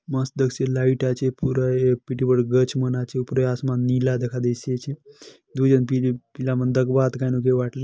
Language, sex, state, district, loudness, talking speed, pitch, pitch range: Halbi, male, Chhattisgarh, Bastar, -22 LUFS, 140 wpm, 130 Hz, 125-130 Hz